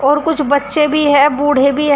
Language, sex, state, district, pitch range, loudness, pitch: Hindi, female, Uttar Pradesh, Shamli, 285-300 Hz, -13 LUFS, 290 Hz